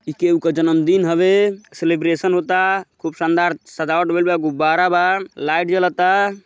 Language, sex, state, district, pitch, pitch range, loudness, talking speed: Bhojpuri, male, Uttar Pradesh, Gorakhpur, 175 Hz, 165-185 Hz, -17 LUFS, 150 wpm